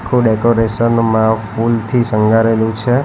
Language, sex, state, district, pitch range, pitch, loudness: Gujarati, male, Gujarat, Valsad, 110-115 Hz, 115 Hz, -14 LUFS